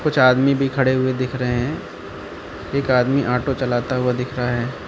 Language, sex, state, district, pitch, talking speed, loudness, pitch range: Hindi, male, Uttar Pradesh, Lucknow, 125 Hz, 195 wpm, -19 LUFS, 120-135 Hz